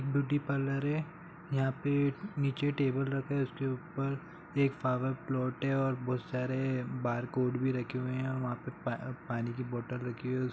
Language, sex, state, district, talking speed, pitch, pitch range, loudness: Hindi, male, Jharkhand, Sahebganj, 200 wpm, 130 Hz, 125-140 Hz, -34 LUFS